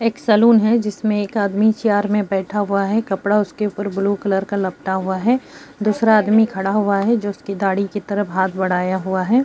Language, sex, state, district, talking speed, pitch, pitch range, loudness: Hindi, female, Uttar Pradesh, Jyotiba Phule Nagar, 210 wpm, 205 Hz, 195-215 Hz, -18 LUFS